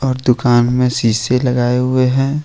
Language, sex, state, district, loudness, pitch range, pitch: Hindi, male, Jharkhand, Ranchi, -14 LUFS, 125-130 Hz, 125 Hz